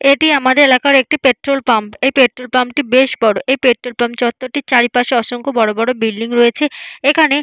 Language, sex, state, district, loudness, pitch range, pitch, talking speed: Bengali, female, West Bengal, Dakshin Dinajpur, -13 LUFS, 240-275 Hz, 255 Hz, 225 wpm